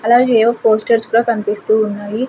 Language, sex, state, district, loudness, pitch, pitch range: Telugu, female, Andhra Pradesh, Sri Satya Sai, -14 LUFS, 225 Hz, 215-235 Hz